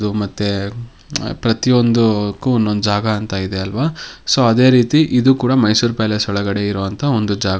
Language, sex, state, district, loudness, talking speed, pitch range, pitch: Kannada, male, Karnataka, Mysore, -16 LUFS, 160 wpm, 100-125 Hz, 110 Hz